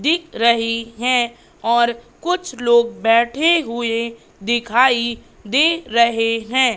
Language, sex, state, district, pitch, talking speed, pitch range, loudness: Hindi, female, Madhya Pradesh, Katni, 235 Hz, 105 wpm, 230-255 Hz, -17 LUFS